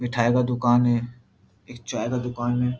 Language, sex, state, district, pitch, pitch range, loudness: Hindi, male, Bihar, Muzaffarpur, 120 Hz, 120-125 Hz, -23 LUFS